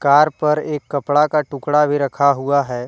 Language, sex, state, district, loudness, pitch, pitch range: Hindi, male, Jharkhand, Deoghar, -17 LUFS, 145 Hz, 140-150 Hz